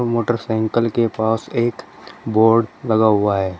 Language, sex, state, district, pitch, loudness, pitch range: Hindi, male, Uttar Pradesh, Shamli, 110 Hz, -18 LUFS, 110-115 Hz